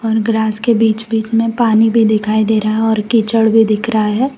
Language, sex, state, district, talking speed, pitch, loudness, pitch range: Hindi, female, Gujarat, Valsad, 245 wpm, 220 Hz, -13 LUFS, 215-225 Hz